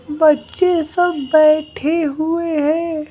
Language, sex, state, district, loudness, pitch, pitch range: Hindi, male, Bihar, Patna, -16 LUFS, 315 Hz, 305-335 Hz